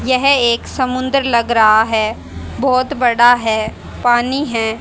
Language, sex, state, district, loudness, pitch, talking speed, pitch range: Hindi, female, Haryana, Rohtak, -14 LUFS, 240 Hz, 135 wpm, 225-255 Hz